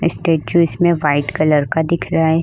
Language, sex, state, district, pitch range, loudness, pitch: Hindi, female, Uttar Pradesh, Budaun, 150-170 Hz, -16 LUFS, 160 Hz